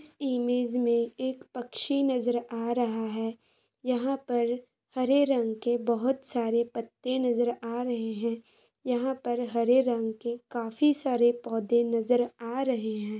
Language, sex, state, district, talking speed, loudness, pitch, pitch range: Hindi, female, Bihar, Araria, 150 wpm, -29 LUFS, 240 Hz, 230-255 Hz